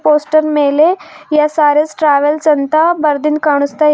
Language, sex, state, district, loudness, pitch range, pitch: Kannada, female, Karnataka, Bidar, -12 LUFS, 295-310 Hz, 300 Hz